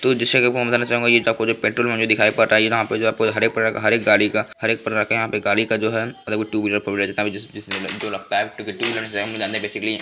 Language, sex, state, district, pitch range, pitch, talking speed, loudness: Hindi, male, Bihar, Begusarai, 105-115 Hz, 110 Hz, 140 wpm, -19 LUFS